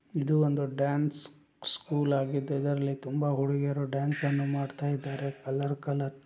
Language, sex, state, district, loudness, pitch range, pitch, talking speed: Kannada, male, Karnataka, Chamarajanagar, -31 LUFS, 140-145 Hz, 140 Hz, 145 wpm